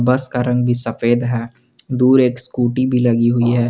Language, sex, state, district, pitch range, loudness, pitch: Hindi, male, Jharkhand, Garhwa, 120-125 Hz, -16 LUFS, 120 Hz